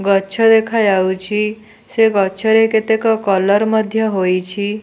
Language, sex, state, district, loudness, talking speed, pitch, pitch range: Odia, female, Odisha, Nuapada, -15 LUFS, 110 wpm, 210 Hz, 195-220 Hz